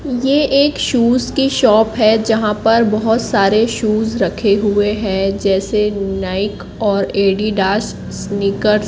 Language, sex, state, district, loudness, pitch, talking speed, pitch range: Hindi, female, Madhya Pradesh, Katni, -15 LUFS, 210 Hz, 135 wpm, 200-225 Hz